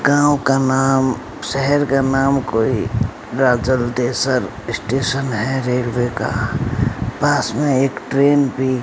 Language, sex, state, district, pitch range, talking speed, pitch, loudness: Hindi, male, Rajasthan, Bikaner, 120-135 Hz, 120 wpm, 130 Hz, -18 LUFS